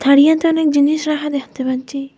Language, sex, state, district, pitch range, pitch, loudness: Bengali, female, Assam, Hailakandi, 275-305 Hz, 290 Hz, -16 LUFS